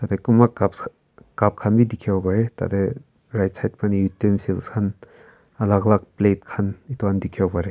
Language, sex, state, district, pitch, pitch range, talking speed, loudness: Nagamese, male, Nagaland, Kohima, 100 Hz, 95-110 Hz, 185 wpm, -21 LUFS